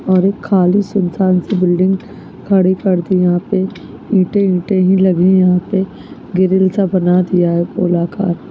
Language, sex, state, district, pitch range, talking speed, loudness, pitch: Hindi, female, Chhattisgarh, Balrampur, 180-195 Hz, 170 wpm, -14 LUFS, 185 Hz